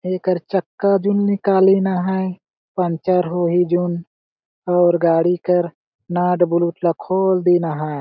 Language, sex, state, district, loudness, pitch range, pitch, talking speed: Sadri, male, Chhattisgarh, Jashpur, -18 LUFS, 175-190 Hz, 180 Hz, 110 wpm